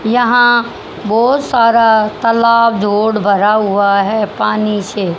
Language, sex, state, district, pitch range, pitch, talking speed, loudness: Hindi, female, Haryana, Charkhi Dadri, 205-230 Hz, 220 Hz, 115 wpm, -12 LUFS